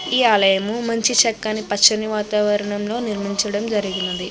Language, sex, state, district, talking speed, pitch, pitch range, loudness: Telugu, female, Andhra Pradesh, Krishna, 110 wpm, 210 Hz, 205-225 Hz, -19 LUFS